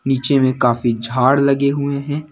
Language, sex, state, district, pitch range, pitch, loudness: Hindi, male, Jharkhand, Deoghar, 130-140 Hz, 135 Hz, -16 LUFS